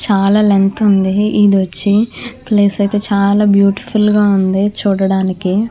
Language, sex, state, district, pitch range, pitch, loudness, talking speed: Telugu, female, Andhra Pradesh, Chittoor, 195-210 Hz, 200 Hz, -13 LUFS, 125 wpm